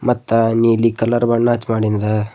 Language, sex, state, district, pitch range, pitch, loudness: Kannada, male, Karnataka, Bidar, 110-120 Hz, 115 Hz, -16 LUFS